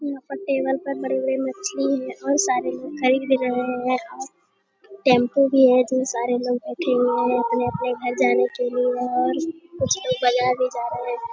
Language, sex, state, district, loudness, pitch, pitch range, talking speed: Hindi, female, Bihar, Jamui, -22 LUFS, 250 Hz, 235-270 Hz, 200 wpm